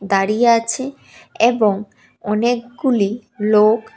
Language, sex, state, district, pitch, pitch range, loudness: Bengali, female, Tripura, West Tripura, 220 Hz, 210-240 Hz, -17 LUFS